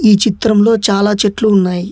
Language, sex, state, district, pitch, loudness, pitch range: Telugu, male, Telangana, Hyderabad, 210 Hz, -12 LUFS, 200-220 Hz